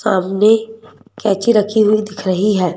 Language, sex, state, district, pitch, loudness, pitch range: Hindi, female, Madhya Pradesh, Bhopal, 210 Hz, -15 LUFS, 190-215 Hz